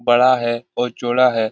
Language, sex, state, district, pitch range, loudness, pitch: Hindi, male, Bihar, Lakhisarai, 120-125 Hz, -17 LUFS, 120 Hz